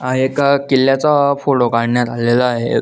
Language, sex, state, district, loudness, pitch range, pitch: Marathi, male, Maharashtra, Solapur, -15 LUFS, 120-140 Hz, 130 Hz